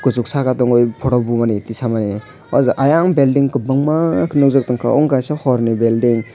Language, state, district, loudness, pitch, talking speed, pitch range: Kokborok, Tripura, West Tripura, -15 LUFS, 125 Hz, 180 wpm, 115-140 Hz